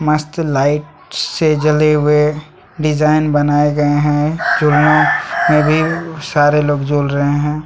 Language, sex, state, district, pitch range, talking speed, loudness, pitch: Hindi, male, Chhattisgarh, Sukma, 145-155 Hz, 135 wpm, -14 LUFS, 150 Hz